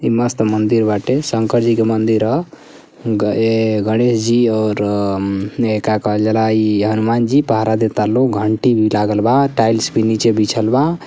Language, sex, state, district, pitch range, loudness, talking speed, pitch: Bhojpuri, male, Uttar Pradesh, Gorakhpur, 110-115 Hz, -15 LUFS, 175 wpm, 110 Hz